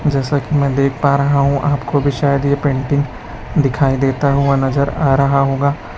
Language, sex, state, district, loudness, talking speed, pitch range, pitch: Hindi, male, Chhattisgarh, Raipur, -15 LUFS, 200 wpm, 135-140 Hz, 140 Hz